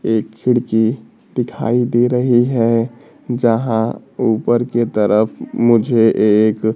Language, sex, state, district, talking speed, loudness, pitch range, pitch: Hindi, male, Bihar, Kaimur, 105 wpm, -16 LUFS, 110-120 Hz, 115 Hz